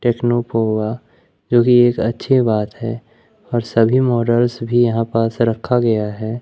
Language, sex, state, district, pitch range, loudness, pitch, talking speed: Hindi, male, Madhya Pradesh, Umaria, 115-120 Hz, -17 LUFS, 115 Hz, 160 wpm